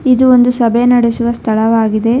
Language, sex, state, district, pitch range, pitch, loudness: Kannada, female, Karnataka, Bangalore, 225-245 Hz, 235 Hz, -11 LUFS